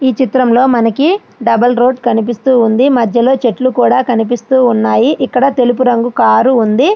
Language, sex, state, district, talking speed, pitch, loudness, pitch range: Telugu, female, Andhra Pradesh, Srikakulam, 165 wpm, 245 Hz, -11 LUFS, 235-260 Hz